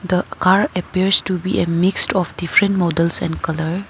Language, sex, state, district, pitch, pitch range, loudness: English, female, Arunachal Pradesh, Papum Pare, 180 Hz, 170-185 Hz, -18 LUFS